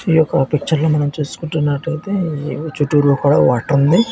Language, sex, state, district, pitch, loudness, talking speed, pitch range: Telugu, male, Andhra Pradesh, Visakhapatnam, 150 Hz, -16 LUFS, 115 wpm, 145-165 Hz